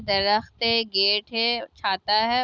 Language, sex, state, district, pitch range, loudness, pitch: Hindi, female, Bihar, Kishanganj, 205-230 Hz, -22 LUFS, 215 Hz